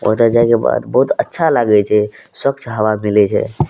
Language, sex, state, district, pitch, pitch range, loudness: Maithili, male, Bihar, Madhepura, 115 Hz, 105-125 Hz, -14 LUFS